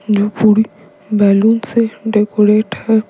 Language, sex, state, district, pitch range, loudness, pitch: Hindi, female, Bihar, Patna, 210-220 Hz, -14 LUFS, 215 Hz